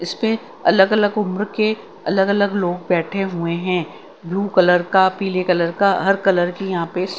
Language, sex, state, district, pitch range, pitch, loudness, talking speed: Hindi, female, Bihar, Katihar, 180-200 Hz, 190 Hz, -18 LUFS, 185 wpm